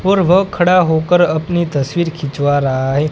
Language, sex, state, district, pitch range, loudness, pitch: Hindi, female, Gujarat, Gandhinagar, 145-175 Hz, -14 LUFS, 165 Hz